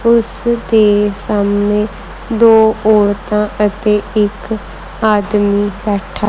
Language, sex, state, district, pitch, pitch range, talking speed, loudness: Punjabi, female, Punjab, Kapurthala, 210 Hz, 205-220 Hz, 85 wpm, -13 LUFS